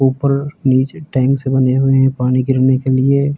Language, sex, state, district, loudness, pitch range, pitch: Hindi, male, Uttar Pradesh, Jyotiba Phule Nagar, -15 LUFS, 130-140 Hz, 135 Hz